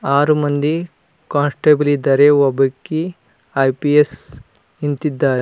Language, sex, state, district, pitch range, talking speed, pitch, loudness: Kannada, male, Karnataka, Bidar, 135-150 Hz, 75 wpm, 145 Hz, -16 LUFS